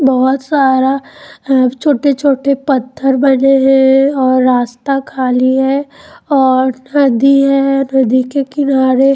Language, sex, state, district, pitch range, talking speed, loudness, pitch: Hindi, female, Chandigarh, Chandigarh, 260-275 Hz, 120 wpm, -12 LUFS, 270 Hz